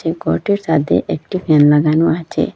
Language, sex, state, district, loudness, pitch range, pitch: Bengali, female, Assam, Hailakandi, -15 LUFS, 155-170 Hz, 165 Hz